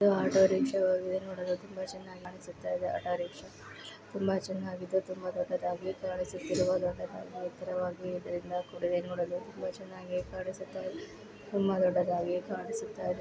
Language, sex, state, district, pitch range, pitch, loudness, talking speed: Kannada, female, Karnataka, Bellary, 180-190 Hz, 185 Hz, -34 LUFS, 130 wpm